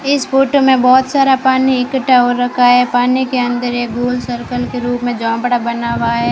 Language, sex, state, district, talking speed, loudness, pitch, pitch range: Hindi, female, Rajasthan, Bikaner, 220 wpm, -13 LUFS, 245 Hz, 245-260 Hz